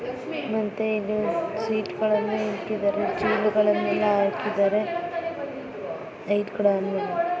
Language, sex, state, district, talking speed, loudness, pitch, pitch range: Kannada, female, Karnataka, Belgaum, 90 wpm, -25 LUFS, 215 Hz, 205-220 Hz